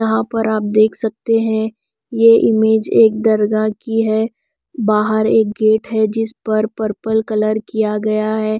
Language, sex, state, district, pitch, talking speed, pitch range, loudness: Hindi, female, Bihar, West Champaran, 220 Hz, 155 wpm, 215-225 Hz, -16 LUFS